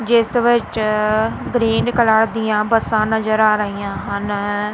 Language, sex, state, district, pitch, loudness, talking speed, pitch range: Punjabi, female, Punjab, Kapurthala, 220 Hz, -17 LUFS, 125 wpm, 210-225 Hz